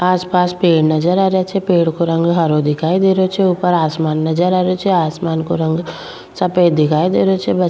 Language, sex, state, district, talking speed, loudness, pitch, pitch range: Rajasthani, female, Rajasthan, Churu, 235 wpm, -15 LUFS, 175 Hz, 160-185 Hz